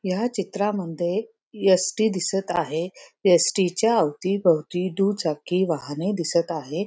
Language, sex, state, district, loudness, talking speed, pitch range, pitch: Marathi, female, Maharashtra, Pune, -23 LUFS, 105 wpm, 170-200 Hz, 185 Hz